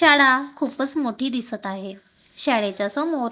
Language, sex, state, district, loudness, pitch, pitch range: Marathi, female, Maharashtra, Gondia, -21 LUFS, 250 Hz, 200-285 Hz